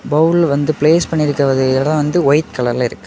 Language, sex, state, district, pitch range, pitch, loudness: Tamil, male, Tamil Nadu, Kanyakumari, 135-155 Hz, 150 Hz, -14 LUFS